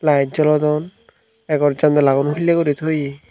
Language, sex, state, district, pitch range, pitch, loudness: Chakma, male, Tripura, Unakoti, 145-155 Hz, 150 Hz, -17 LUFS